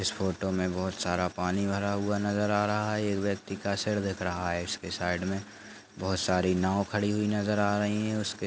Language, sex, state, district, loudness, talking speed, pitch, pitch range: Hindi, male, Goa, North and South Goa, -30 LUFS, 235 wpm, 100 Hz, 95-105 Hz